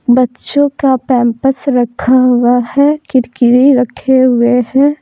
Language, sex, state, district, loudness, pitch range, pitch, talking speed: Hindi, female, Bihar, Patna, -11 LUFS, 245-270 Hz, 255 Hz, 120 wpm